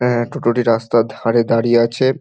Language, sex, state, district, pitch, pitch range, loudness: Bengali, male, West Bengal, Dakshin Dinajpur, 120 Hz, 115-125 Hz, -16 LUFS